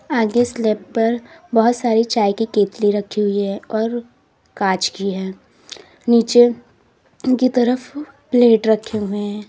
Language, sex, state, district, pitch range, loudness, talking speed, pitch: Hindi, female, Uttar Pradesh, Lalitpur, 205-240 Hz, -18 LUFS, 140 wpm, 225 Hz